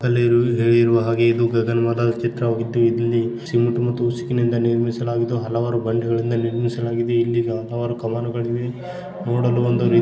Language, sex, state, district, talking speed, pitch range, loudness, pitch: Kannada, male, Karnataka, Bijapur, 120 wpm, 115-120 Hz, -20 LUFS, 120 Hz